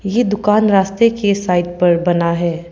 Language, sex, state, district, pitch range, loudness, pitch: Hindi, female, Arunachal Pradesh, Papum Pare, 175-210 Hz, -15 LUFS, 195 Hz